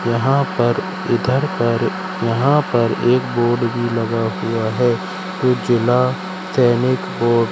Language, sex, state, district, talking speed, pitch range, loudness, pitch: Hindi, male, Madhya Pradesh, Katni, 130 wpm, 115-130 Hz, -18 LUFS, 120 Hz